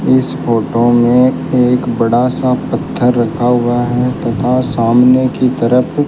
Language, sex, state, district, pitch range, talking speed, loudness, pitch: Hindi, male, Rajasthan, Bikaner, 120-125 Hz, 150 wpm, -12 LUFS, 125 Hz